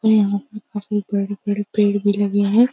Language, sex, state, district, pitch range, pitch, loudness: Hindi, female, Uttar Pradesh, Jyotiba Phule Nagar, 205-215 Hz, 205 Hz, -20 LUFS